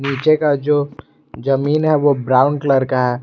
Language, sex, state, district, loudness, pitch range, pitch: Hindi, male, Jharkhand, Garhwa, -16 LUFS, 130-145 Hz, 140 Hz